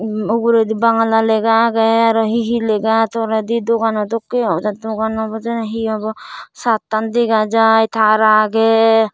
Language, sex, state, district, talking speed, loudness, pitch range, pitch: Chakma, female, Tripura, Dhalai, 150 wpm, -15 LUFS, 220-230 Hz, 225 Hz